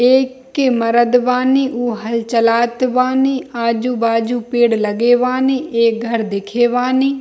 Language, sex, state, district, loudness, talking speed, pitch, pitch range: Hindi, female, Bihar, Darbhanga, -16 LUFS, 135 wpm, 245 Hz, 230-255 Hz